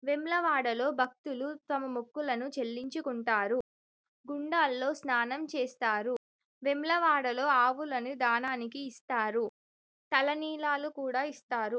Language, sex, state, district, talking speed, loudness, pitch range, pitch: Telugu, female, Telangana, Karimnagar, 85 wpm, -32 LUFS, 245-290 Hz, 265 Hz